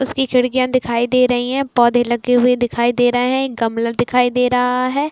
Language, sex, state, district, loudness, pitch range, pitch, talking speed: Hindi, female, Bihar, Saran, -16 LUFS, 240-255 Hz, 250 Hz, 210 wpm